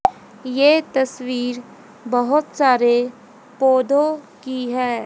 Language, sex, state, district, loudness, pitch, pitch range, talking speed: Hindi, female, Haryana, Jhajjar, -19 LUFS, 255 Hz, 245-275 Hz, 85 wpm